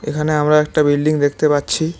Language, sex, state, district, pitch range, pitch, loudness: Bengali, male, West Bengal, Cooch Behar, 145-155 Hz, 150 Hz, -16 LUFS